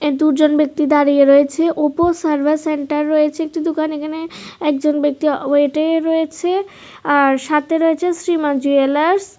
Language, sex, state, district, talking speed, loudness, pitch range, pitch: Bengali, female, Tripura, West Tripura, 140 wpm, -16 LUFS, 290-325 Hz, 300 Hz